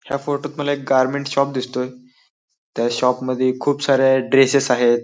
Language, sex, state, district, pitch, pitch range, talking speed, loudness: Marathi, male, Maharashtra, Solapur, 130 Hz, 125-140 Hz, 155 wpm, -19 LUFS